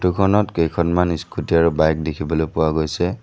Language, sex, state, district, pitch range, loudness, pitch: Assamese, male, Assam, Sonitpur, 80-90 Hz, -19 LUFS, 85 Hz